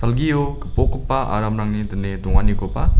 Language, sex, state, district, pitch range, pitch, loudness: Garo, male, Meghalaya, South Garo Hills, 100-130 Hz, 105 Hz, -21 LUFS